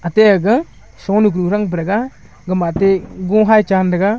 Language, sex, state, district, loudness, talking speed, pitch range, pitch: Wancho, male, Arunachal Pradesh, Longding, -15 LUFS, 160 wpm, 185-215 Hz, 200 Hz